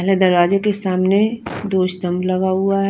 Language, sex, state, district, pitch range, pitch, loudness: Hindi, female, Punjab, Fazilka, 185-195 Hz, 190 Hz, -17 LUFS